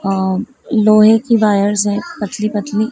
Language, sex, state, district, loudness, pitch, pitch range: Hindi, female, Madhya Pradesh, Dhar, -14 LUFS, 210 Hz, 205-220 Hz